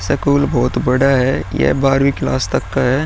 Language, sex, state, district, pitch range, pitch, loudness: Hindi, male, Uttar Pradesh, Muzaffarnagar, 125-140 Hz, 135 Hz, -15 LUFS